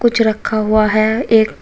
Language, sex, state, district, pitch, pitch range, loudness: Hindi, female, Uttar Pradesh, Shamli, 220 Hz, 215-225 Hz, -14 LUFS